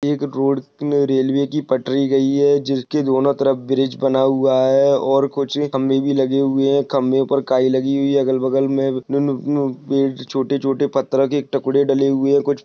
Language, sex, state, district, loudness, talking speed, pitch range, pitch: Hindi, male, Maharashtra, Sindhudurg, -18 LUFS, 185 wpm, 135-140 Hz, 135 Hz